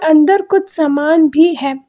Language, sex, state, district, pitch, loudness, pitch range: Hindi, female, Karnataka, Bangalore, 315 Hz, -12 LUFS, 295-345 Hz